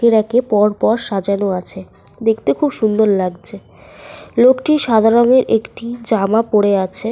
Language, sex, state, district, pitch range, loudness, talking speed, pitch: Bengali, female, Jharkhand, Sahebganj, 200-235 Hz, -15 LUFS, 125 wpm, 220 Hz